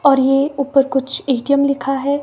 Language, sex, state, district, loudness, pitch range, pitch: Hindi, female, Himachal Pradesh, Shimla, -16 LUFS, 270-280 Hz, 275 Hz